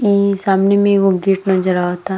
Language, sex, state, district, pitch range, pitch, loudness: Bhojpuri, female, Uttar Pradesh, Gorakhpur, 190-200 Hz, 195 Hz, -14 LUFS